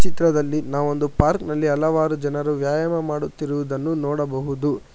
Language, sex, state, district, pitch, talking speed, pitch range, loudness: Kannada, male, Karnataka, Bangalore, 150 Hz, 110 wpm, 145-155 Hz, -22 LUFS